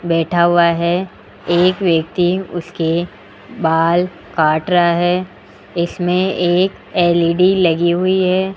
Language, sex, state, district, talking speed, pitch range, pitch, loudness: Hindi, male, Rajasthan, Jaipur, 110 wpm, 170-185 Hz, 175 Hz, -15 LUFS